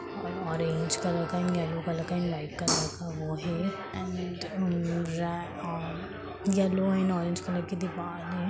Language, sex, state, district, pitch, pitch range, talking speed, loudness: Hindi, female, Bihar, Lakhisarai, 175 Hz, 170-185 Hz, 160 wpm, -31 LUFS